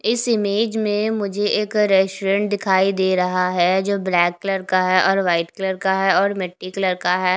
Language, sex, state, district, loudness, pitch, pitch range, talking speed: Hindi, female, Odisha, Khordha, -19 LUFS, 195 Hz, 185-205 Hz, 205 wpm